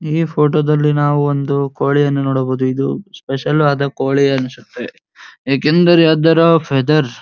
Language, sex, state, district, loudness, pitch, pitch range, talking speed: Kannada, male, Karnataka, Dharwad, -14 LUFS, 145 Hz, 135-155 Hz, 125 wpm